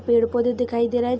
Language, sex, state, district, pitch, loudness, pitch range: Hindi, female, Jharkhand, Sahebganj, 240 Hz, -21 LUFS, 235-245 Hz